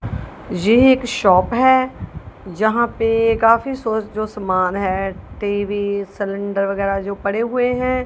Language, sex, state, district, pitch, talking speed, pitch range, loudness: Hindi, female, Punjab, Kapurthala, 215 Hz, 135 wpm, 200-240 Hz, -18 LUFS